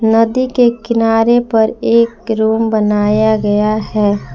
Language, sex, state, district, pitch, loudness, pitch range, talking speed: Hindi, female, Jharkhand, Palamu, 225 Hz, -13 LUFS, 215-230 Hz, 125 wpm